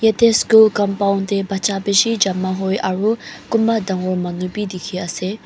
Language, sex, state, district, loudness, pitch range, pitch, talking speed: Nagamese, female, Mizoram, Aizawl, -17 LUFS, 185-220 Hz, 200 Hz, 165 wpm